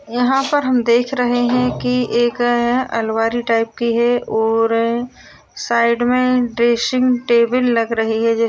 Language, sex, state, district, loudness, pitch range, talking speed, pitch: Hindi, female, Uttar Pradesh, Jalaun, -16 LUFS, 230-250 Hz, 150 wpm, 240 Hz